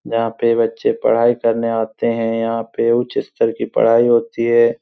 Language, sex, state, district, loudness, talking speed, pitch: Hindi, male, Bihar, Supaul, -17 LUFS, 185 wpm, 115 Hz